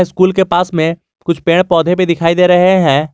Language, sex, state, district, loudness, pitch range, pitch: Hindi, male, Jharkhand, Garhwa, -12 LUFS, 165-180 Hz, 175 Hz